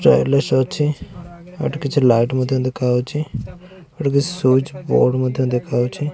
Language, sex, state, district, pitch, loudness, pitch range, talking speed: Odia, male, Odisha, Khordha, 140 Hz, -18 LUFS, 130-150 Hz, 115 wpm